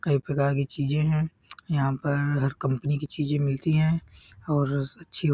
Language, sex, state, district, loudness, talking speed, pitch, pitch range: Hindi, male, Uttar Pradesh, Hamirpur, -26 LUFS, 190 wpm, 145 Hz, 140-155 Hz